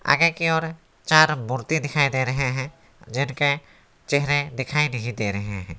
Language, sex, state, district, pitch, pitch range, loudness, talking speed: Hindi, male, West Bengal, Alipurduar, 140 Hz, 130-155 Hz, -22 LUFS, 165 wpm